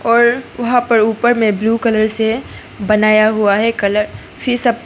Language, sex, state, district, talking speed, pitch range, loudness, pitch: Hindi, female, Arunachal Pradesh, Papum Pare, 150 wpm, 215-235 Hz, -14 LUFS, 225 Hz